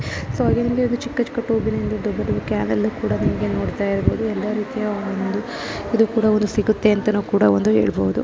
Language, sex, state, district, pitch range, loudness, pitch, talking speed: Kannada, female, Karnataka, Dakshina Kannada, 200-225 Hz, -20 LUFS, 210 Hz, 140 wpm